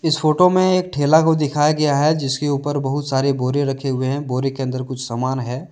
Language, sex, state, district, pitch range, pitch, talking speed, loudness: Hindi, male, Jharkhand, Deoghar, 130-155 Hz, 140 Hz, 240 wpm, -18 LUFS